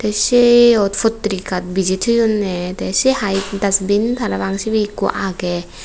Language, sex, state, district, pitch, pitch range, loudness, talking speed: Chakma, female, Tripura, West Tripura, 205 Hz, 190-225 Hz, -16 LUFS, 125 wpm